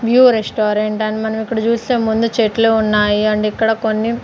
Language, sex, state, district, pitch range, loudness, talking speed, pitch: Telugu, female, Andhra Pradesh, Sri Satya Sai, 215-230 Hz, -15 LUFS, 170 wpm, 220 Hz